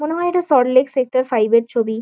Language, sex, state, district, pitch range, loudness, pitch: Bengali, female, West Bengal, Kolkata, 230-285 Hz, -17 LUFS, 255 Hz